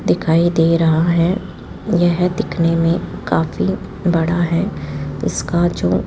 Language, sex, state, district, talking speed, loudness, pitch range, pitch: Hindi, female, Rajasthan, Jaipur, 130 wpm, -17 LUFS, 165-175 Hz, 170 Hz